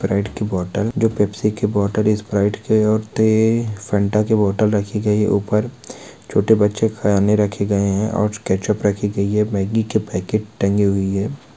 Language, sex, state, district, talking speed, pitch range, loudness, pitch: Hindi, male, West Bengal, Malda, 185 wpm, 100-110 Hz, -18 LUFS, 105 Hz